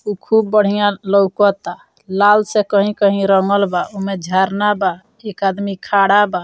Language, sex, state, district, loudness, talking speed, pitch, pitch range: Bhojpuri, female, Bihar, Muzaffarpur, -15 LUFS, 150 wpm, 200 Hz, 195-205 Hz